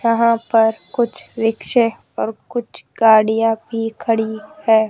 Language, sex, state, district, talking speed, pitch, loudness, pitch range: Hindi, male, Rajasthan, Jaipur, 120 wpm, 225 Hz, -17 LUFS, 220-230 Hz